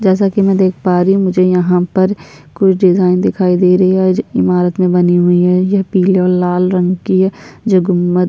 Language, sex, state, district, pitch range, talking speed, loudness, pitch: Hindi, female, Bihar, Kishanganj, 180-190 Hz, 225 wpm, -12 LUFS, 185 Hz